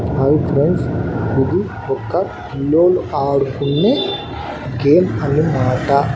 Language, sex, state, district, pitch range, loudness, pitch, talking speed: Telugu, male, Andhra Pradesh, Annamaya, 135-160 Hz, -17 LUFS, 140 Hz, 80 wpm